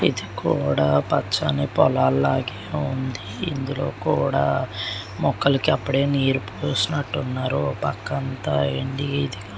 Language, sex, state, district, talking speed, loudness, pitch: Telugu, male, Andhra Pradesh, Srikakulam, 105 wpm, -23 LUFS, 130 Hz